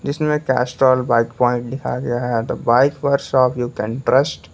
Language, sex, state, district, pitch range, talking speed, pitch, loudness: Hindi, male, Jharkhand, Palamu, 120-135 Hz, 185 wpm, 125 Hz, -18 LUFS